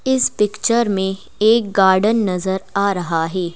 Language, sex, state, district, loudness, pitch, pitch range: Hindi, female, Madhya Pradesh, Bhopal, -17 LUFS, 200 Hz, 190-220 Hz